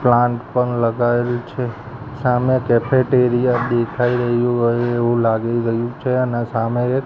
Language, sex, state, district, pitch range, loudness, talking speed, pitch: Gujarati, male, Gujarat, Gandhinagar, 120-125 Hz, -18 LUFS, 135 wpm, 120 Hz